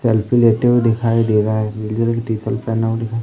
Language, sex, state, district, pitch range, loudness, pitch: Hindi, female, Madhya Pradesh, Umaria, 110-115 Hz, -17 LUFS, 115 Hz